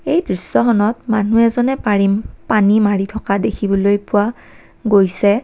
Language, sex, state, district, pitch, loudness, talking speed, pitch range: Assamese, female, Assam, Kamrup Metropolitan, 210 Hz, -16 LUFS, 120 wpm, 200-225 Hz